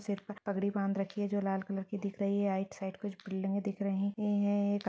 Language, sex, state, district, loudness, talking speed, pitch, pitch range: Hindi, female, Chhattisgarh, Rajnandgaon, -35 LUFS, 270 wpm, 200 Hz, 195-205 Hz